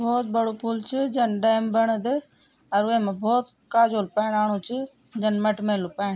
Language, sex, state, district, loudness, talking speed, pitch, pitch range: Garhwali, female, Uttarakhand, Tehri Garhwal, -24 LUFS, 175 wpm, 225 Hz, 210-235 Hz